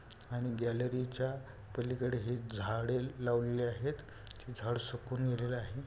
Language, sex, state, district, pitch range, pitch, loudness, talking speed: Marathi, male, Maharashtra, Pune, 115-125 Hz, 120 Hz, -37 LUFS, 125 wpm